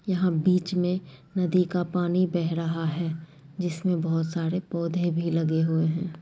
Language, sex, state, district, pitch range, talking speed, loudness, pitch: Angika, female, Bihar, Madhepura, 160-180 Hz, 165 wpm, -26 LUFS, 170 Hz